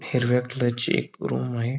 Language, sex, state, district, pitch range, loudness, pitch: Marathi, male, Maharashtra, Pune, 120-125 Hz, -25 LUFS, 125 Hz